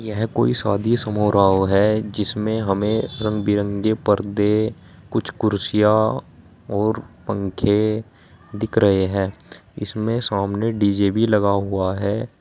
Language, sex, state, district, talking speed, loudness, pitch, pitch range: Hindi, male, Uttar Pradesh, Saharanpur, 115 wpm, -20 LUFS, 105 Hz, 100-110 Hz